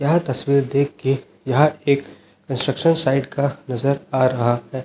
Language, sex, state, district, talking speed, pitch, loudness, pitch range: Hindi, male, Chhattisgarh, Raipur, 160 wpm, 140 Hz, -20 LUFS, 130-140 Hz